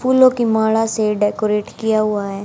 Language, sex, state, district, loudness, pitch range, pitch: Hindi, female, Haryana, Charkhi Dadri, -17 LUFS, 210-225 Hz, 220 Hz